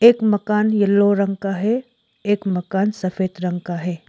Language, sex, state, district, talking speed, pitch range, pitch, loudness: Hindi, female, Arunachal Pradesh, Lower Dibang Valley, 175 wpm, 185-210 Hz, 200 Hz, -20 LUFS